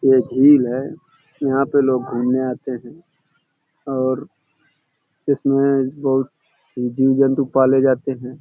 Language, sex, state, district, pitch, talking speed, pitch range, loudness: Hindi, male, Uttar Pradesh, Hamirpur, 135 Hz, 120 wpm, 130-145 Hz, -18 LUFS